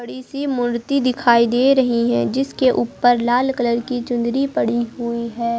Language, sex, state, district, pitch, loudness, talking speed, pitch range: Hindi, female, Uttar Pradesh, Lucknow, 240 Hz, -18 LUFS, 170 wpm, 235-260 Hz